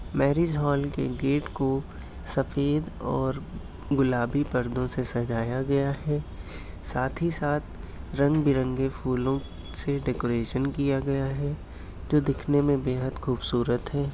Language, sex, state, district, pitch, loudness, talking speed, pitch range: Hindi, male, Uttar Pradesh, Hamirpur, 135 Hz, -27 LUFS, 125 wpm, 120-140 Hz